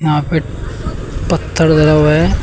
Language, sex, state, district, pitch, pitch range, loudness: Hindi, male, Uttar Pradesh, Shamli, 150 Hz, 120-155 Hz, -14 LUFS